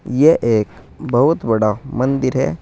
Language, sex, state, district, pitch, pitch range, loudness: Hindi, male, Uttar Pradesh, Saharanpur, 115 Hz, 105-135 Hz, -16 LUFS